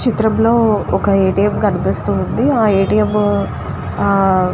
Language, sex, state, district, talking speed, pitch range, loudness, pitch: Telugu, female, Andhra Pradesh, Guntur, 160 wpm, 195-220 Hz, -15 LUFS, 205 Hz